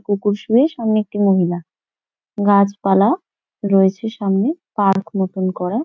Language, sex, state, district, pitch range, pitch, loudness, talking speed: Bengali, female, West Bengal, Kolkata, 195-215 Hz, 200 Hz, -17 LUFS, 115 wpm